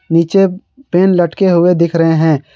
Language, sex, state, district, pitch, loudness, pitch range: Hindi, male, Jharkhand, Garhwa, 175 Hz, -12 LUFS, 165-190 Hz